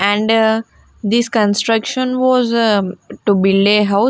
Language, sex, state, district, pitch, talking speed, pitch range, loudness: English, female, Punjab, Fazilka, 220 Hz, 145 wpm, 205-235 Hz, -15 LUFS